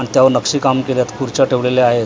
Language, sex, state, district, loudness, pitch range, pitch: Marathi, male, Maharashtra, Mumbai Suburban, -15 LUFS, 125-135 Hz, 130 Hz